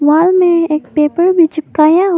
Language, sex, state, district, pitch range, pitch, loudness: Hindi, female, Arunachal Pradesh, Papum Pare, 305-350 Hz, 320 Hz, -11 LUFS